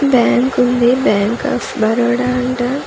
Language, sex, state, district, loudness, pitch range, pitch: Telugu, female, Andhra Pradesh, Manyam, -15 LUFS, 235-255 Hz, 245 Hz